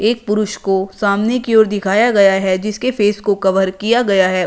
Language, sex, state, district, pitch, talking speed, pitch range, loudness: Hindi, female, Uttar Pradesh, Shamli, 205 Hz, 215 wpm, 195-220 Hz, -15 LUFS